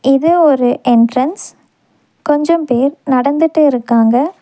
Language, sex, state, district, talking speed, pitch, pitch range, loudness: Tamil, female, Tamil Nadu, Nilgiris, 95 wpm, 275 Hz, 250-310 Hz, -12 LUFS